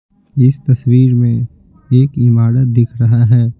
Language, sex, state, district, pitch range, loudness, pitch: Hindi, male, Bihar, Patna, 120-130 Hz, -12 LUFS, 120 Hz